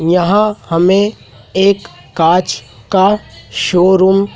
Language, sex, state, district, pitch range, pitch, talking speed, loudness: Hindi, male, Madhya Pradesh, Dhar, 175-200 Hz, 190 Hz, 95 wpm, -13 LUFS